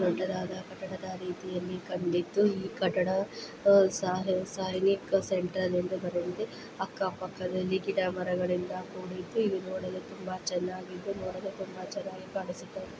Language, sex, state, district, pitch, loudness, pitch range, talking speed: Kannada, female, Karnataka, Belgaum, 185 Hz, -32 LUFS, 180-190 Hz, 110 wpm